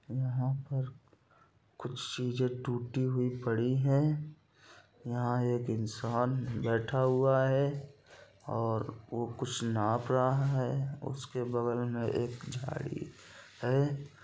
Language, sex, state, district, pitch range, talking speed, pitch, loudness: Hindi, male, Bihar, Gopalganj, 120-135 Hz, 110 wpm, 125 Hz, -33 LUFS